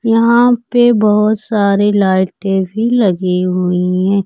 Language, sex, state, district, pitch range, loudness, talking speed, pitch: Hindi, female, Bihar, Kaimur, 185-225 Hz, -13 LUFS, 125 wpm, 205 Hz